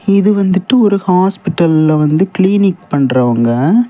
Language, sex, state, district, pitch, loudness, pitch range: Tamil, male, Tamil Nadu, Kanyakumari, 185 Hz, -12 LUFS, 155-200 Hz